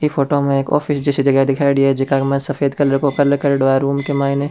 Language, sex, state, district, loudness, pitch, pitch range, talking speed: Rajasthani, male, Rajasthan, Churu, -16 LUFS, 140 Hz, 135-140 Hz, 250 wpm